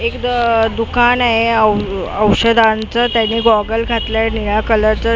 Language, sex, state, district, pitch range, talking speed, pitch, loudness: Marathi, female, Maharashtra, Mumbai Suburban, 220-230 Hz, 165 wpm, 225 Hz, -14 LUFS